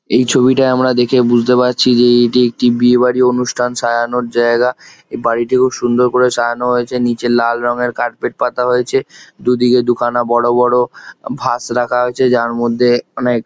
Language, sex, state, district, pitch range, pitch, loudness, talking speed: Bengali, male, West Bengal, Jhargram, 120-125 Hz, 125 Hz, -13 LUFS, 185 wpm